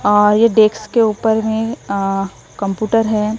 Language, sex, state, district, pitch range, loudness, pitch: Hindi, female, Maharashtra, Gondia, 205-220 Hz, -15 LUFS, 215 Hz